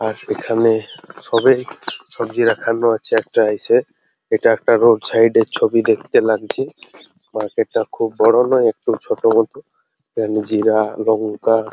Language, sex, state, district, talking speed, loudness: Bengali, male, West Bengal, Jalpaiguri, 145 wpm, -17 LUFS